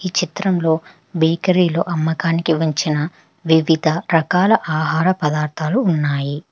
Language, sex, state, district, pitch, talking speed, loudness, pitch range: Telugu, female, Telangana, Hyderabad, 160 Hz, 90 wpm, -18 LUFS, 155-180 Hz